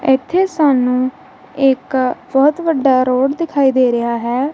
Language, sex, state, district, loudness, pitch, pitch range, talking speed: Punjabi, female, Punjab, Kapurthala, -15 LUFS, 265 Hz, 255-290 Hz, 130 wpm